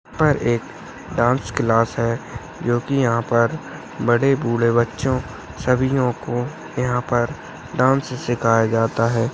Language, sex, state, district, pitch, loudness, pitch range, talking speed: Hindi, male, Bihar, Madhepura, 120 Hz, -20 LUFS, 115-130 Hz, 140 wpm